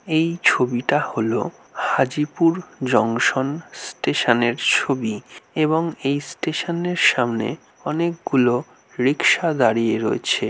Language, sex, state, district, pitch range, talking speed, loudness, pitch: Bengali, male, West Bengal, North 24 Parganas, 120-165 Hz, 95 wpm, -20 LUFS, 135 Hz